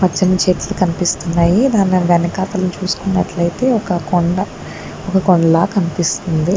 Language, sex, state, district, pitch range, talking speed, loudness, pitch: Telugu, female, Andhra Pradesh, Guntur, 175-190 Hz, 135 wpm, -15 LUFS, 185 Hz